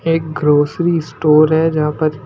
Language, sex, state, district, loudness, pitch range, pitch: Hindi, male, Punjab, Pathankot, -14 LUFS, 150-165 Hz, 155 Hz